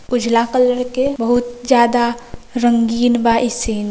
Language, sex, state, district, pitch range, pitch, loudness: Hindi, female, Bihar, East Champaran, 235-245 Hz, 240 Hz, -16 LUFS